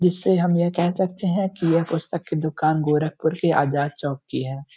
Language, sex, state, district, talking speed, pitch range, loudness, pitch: Hindi, male, Uttar Pradesh, Gorakhpur, 215 wpm, 150-175 Hz, -22 LUFS, 165 Hz